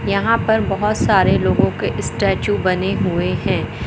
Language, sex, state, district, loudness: Hindi, female, Madhya Pradesh, Katni, -17 LUFS